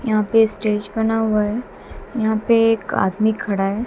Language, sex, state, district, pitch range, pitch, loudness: Hindi, female, Haryana, Jhajjar, 210-225 Hz, 220 Hz, -19 LUFS